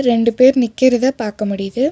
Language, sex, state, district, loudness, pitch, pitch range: Tamil, female, Tamil Nadu, Nilgiris, -15 LUFS, 245 Hz, 220-260 Hz